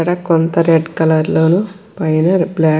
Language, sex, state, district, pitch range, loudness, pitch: Telugu, female, Andhra Pradesh, Krishna, 160-180 Hz, -14 LUFS, 165 Hz